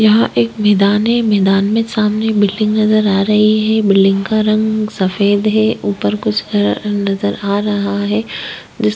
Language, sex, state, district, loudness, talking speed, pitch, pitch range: Hindi, female, Chhattisgarh, Korba, -14 LUFS, 175 wpm, 205 Hz, 195-215 Hz